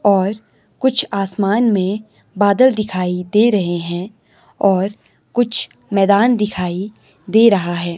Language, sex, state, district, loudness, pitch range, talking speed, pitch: Hindi, male, Himachal Pradesh, Shimla, -16 LUFS, 185-220 Hz, 120 wpm, 200 Hz